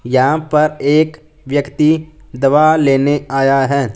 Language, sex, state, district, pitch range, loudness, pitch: Hindi, male, Punjab, Fazilka, 135-155 Hz, -14 LUFS, 145 Hz